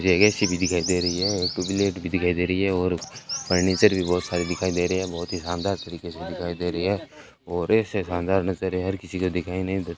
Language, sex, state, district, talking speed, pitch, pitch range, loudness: Hindi, male, Rajasthan, Bikaner, 260 wpm, 90 Hz, 90-95 Hz, -24 LUFS